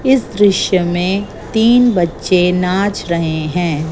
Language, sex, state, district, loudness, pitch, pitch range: Hindi, female, Gujarat, Gandhinagar, -14 LUFS, 180 Hz, 175-205 Hz